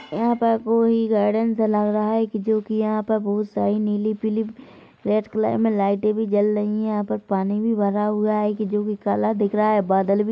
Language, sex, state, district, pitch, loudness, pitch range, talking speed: Hindi, female, Chhattisgarh, Rajnandgaon, 215 Hz, -21 LUFS, 210-220 Hz, 225 wpm